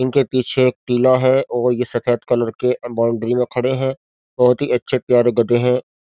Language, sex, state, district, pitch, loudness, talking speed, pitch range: Hindi, male, Uttar Pradesh, Jyotiba Phule Nagar, 125 Hz, -17 LUFS, 200 wpm, 120-130 Hz